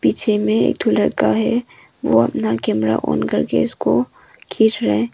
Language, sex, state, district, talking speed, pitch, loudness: Hindi, female, Arunachal Pradesh, Longding, 165 wpm, 210 Hz, -18 LUFS